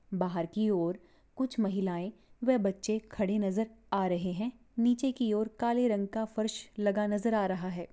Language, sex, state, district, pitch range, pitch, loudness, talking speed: Hindi, female, Chhattisgarh, Rajnandgaon, 195-225 Hz, 210 Hz, -32 LUFS, 180 wpm